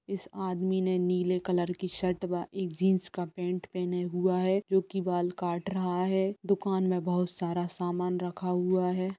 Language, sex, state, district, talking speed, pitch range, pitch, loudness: Bhojpuri, female, Bihar, Saran, 185 wpm, 180-190 Hz, 180 Hz, -30 LUFS